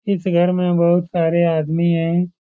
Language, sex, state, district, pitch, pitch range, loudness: Hindi, male, Bihar, Supaul, 170 Hz, 170-180 Hz, -17 LUFS